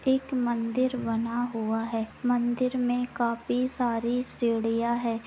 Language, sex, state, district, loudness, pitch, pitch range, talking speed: Hindi, female, Bihar, Jahanabad, -28 LUFS, 240 Hz, 230-250 Hz, 125 wpm